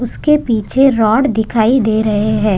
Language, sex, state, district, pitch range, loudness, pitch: Hindi, female, Maharashtra, Chandrapur, 215-265 Hz, -13 LUFS, 220 Hz